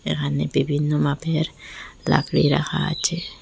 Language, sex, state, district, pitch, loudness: Bengali, female, Assam, Hailakandi, 145 Hz, -22 LUFS